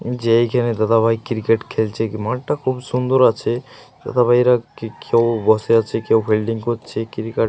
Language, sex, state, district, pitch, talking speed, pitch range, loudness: Bengali, male, Jharkhand, Jamtara, 115 Hz, 150 wpm, 110-125 Hz, -18 LUFS